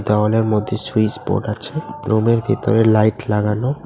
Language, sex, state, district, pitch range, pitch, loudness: Bengali, male, West Bengal, Cooch Behar, 105-125 Hz, 110 Hz, -18 LUFS